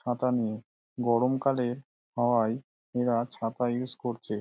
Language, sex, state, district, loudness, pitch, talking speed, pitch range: Bengali, male, West Bengal, Dakshin Dinajpur, -29 LUFS, 120 Hz, 135 wpm, 115-125 Hz